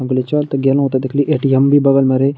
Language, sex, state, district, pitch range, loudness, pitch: Maithili, male, Bihar, Madhepura, 130-145 Hz, -14 LUFS, 135 Hz